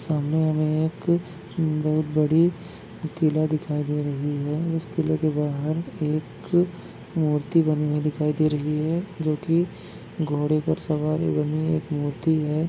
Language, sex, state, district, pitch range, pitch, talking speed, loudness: Hindi, male, Chhattisgarh, Bastar, 150-160 Hz, 155 Hz, 145 wpm, -24 LUFS